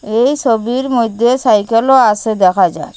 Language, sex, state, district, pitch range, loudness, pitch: Bengali, female, Assam, Hailakandi, 220-255 Hz, -12 LUFS, 235 Hz